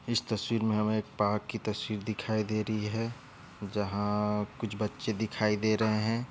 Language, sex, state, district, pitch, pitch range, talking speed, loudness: Hindi, male, Maharashtra, Aurangabad, 110 Hz, 105-115 Hz, 180 wpm, -31 LUFS